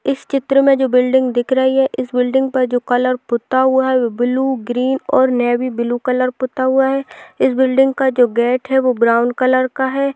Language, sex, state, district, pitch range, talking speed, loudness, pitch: Hindi, female, Bihar, Lakhisarai, 250-265 Hz, 225 wpm, -15 LUFS, 260 Hz